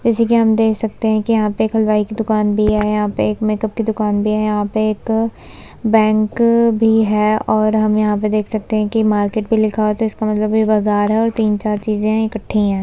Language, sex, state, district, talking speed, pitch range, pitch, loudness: Hindi, female, Uttar Pradesh, Budaun, 255 wpm, 210-220 Hz, 215 Hz, -16 LUFS